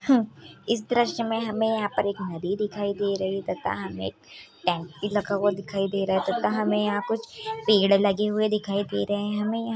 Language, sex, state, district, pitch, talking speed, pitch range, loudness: Hindi, female, Bihar, Purnia, 205 Hz, 225 wpm, 200-220 Hz, -26 LUFS